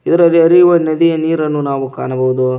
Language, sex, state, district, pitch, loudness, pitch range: Kannada, male, Karnataka, Koppal, 160 Hz, -12 LUFS, 135-170 Hz